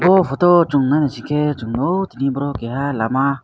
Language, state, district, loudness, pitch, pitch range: Kokborok, Tripura, West Tripura, -18 LUFS, 140 Hz, 135-150 Hz